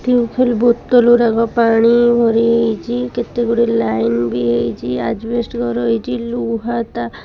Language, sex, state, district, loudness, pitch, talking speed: Odia, female, Odisha, Khordha, -15 LUFS, 230 Hz, 140 wpm